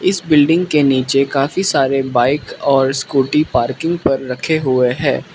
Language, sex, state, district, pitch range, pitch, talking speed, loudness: Hindi, male, Mizoram, Aizawl, 135-155 Hz, 135 Hz, 145 wpm, -15 LUFS